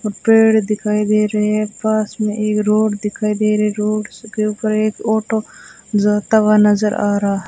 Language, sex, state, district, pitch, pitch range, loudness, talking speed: Hindi, female, Rajasthan, Bikaner, 215 Hz, 210-215 Hz, -16 LUFS, 175 wpm